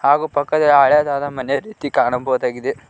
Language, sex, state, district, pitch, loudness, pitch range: Kannada, male, Karnataka, Koppal, 145 Hz, -17 LUFS, 135-150 Hz